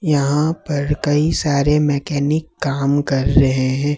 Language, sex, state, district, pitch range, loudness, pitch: Hindi, male, Jharkhand, Ranchi, 140-150 Hz, -17 LUFS, 145 Hz